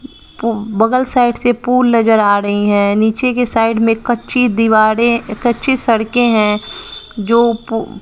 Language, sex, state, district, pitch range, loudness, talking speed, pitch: Hindi, female, Bihar, West Champaran, 220-245 Hz, -13 LUFS, 150 wpm, 230 Hz